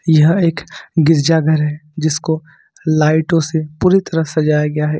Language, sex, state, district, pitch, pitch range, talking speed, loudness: Hindi, male, Jharkhand, Ranchi, 160 Hz, 155-165 Hz, 155 wpm, -15 LUFS